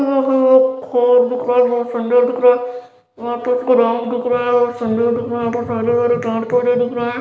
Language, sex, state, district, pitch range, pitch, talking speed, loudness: Hindi, male, Chhattisgarh, Balrampur, 240-245 Hz, 245 Hz, 165 wpm, -16 LUFS